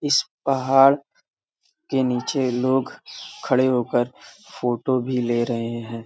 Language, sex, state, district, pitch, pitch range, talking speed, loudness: Hindi, male, Uttar Pradesh, Varanasi, 130 Hz, 120-135 Hz, 120 wpm, -22 LUFS